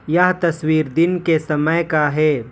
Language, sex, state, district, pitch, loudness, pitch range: Hindi, male, Jharkhand, Ranchi, 160 Hz, -17 LUFS, 150-170 Hz